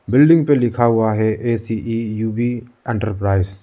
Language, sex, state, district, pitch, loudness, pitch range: Hindi, male, Arunachal Pradesh, Lower Dibang Valley, 115 Hz, -18 LUFS, 110-120 Hz